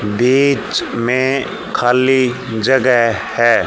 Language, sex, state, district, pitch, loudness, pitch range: Hindi, male, Haryana, Charkhi Dadri, 125 Hz, -15 LUFS, 120-130 Hz